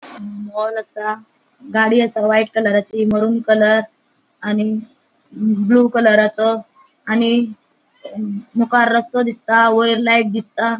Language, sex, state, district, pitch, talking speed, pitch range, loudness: Konkani, female, Goa, North and South Goa, 225 Hz, 110 wpm, 215-235 Hz, -16 LUFS